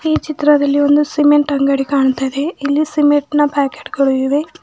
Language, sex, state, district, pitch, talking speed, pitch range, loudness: Kannada, female, Karnataka, Bidar, 290 Hz, 170 wpm, 280-295 Hz, -14 LUFS